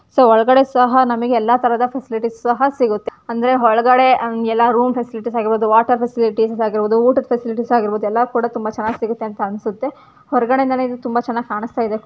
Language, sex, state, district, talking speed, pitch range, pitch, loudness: Kannada, female, Karnataka, Gulbarga, 160 wpm, 225-250 Hz, 235 Hz, -16 LUFS